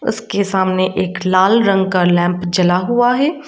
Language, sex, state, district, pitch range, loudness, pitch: Hindi, female, Arunachal Pradesh, Lower Dibang Valley, 185-225 Hz, -15 LUFS, 190 Hz